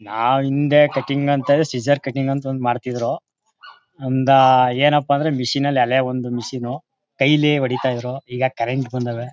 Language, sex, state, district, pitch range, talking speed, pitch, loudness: Kannada, male, Karnataka, Mysore, 125-140 Hz, 130 wpm, 135 Hz, -18 LUFS